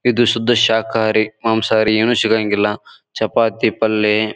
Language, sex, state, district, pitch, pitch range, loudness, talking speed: Kannada, male, Karnataka, Bijapur, 110 Hz, 110-115 Hz, -16 LUFS, 135 wpm